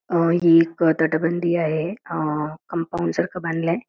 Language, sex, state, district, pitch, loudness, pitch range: Marathi, female, Karnataka, Belgaum, 165 Hz, -21 LUFS, 160-170 Hz